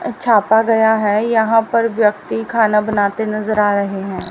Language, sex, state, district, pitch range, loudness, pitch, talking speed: Hindi, female, Haryana, Rohtak, 210-225 Hz, -15 LUFS, 220 Hz, 165 wpm